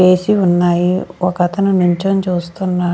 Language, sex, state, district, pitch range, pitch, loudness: Telugu, female, Andhra Pradesh, Sri Satya Sai, 175-190 Hz, 180 Hz, -15 LUFS